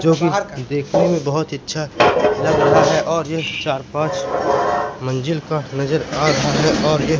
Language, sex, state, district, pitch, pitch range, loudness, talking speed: Hindi, male, Madhya Pradesh, Katni, 155 Hz, 140-165 Hz, -18 LUFS, 175 wpm